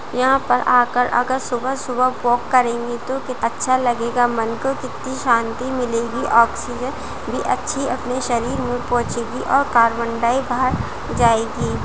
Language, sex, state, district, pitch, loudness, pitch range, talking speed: Hindi, female, Rajasthan, Churu, 245 Hz, -19 LUFS, 235-255 Hz, 140 wpm